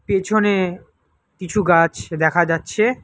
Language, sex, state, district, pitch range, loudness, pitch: Bengali, male, West Bengal, Alipurduar, 165-205 Hz, -18 LUFS, 180 Hz